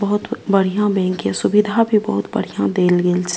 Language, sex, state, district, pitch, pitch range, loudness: Maithili, female, Bihar, Purnia, 185 Hz, 175-205 Hz, -18 LUFS